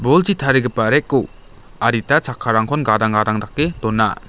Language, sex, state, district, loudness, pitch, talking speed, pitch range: Garo, male, Meghalaya, West Garo Hills, -17 LUFS, 120 Hz, 125 wpm, 110-145 Hz